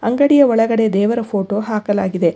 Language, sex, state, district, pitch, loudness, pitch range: Kannada, female, Karnataka, Bangalore, 215 Hz, -15 LUFS, 200-230 Hz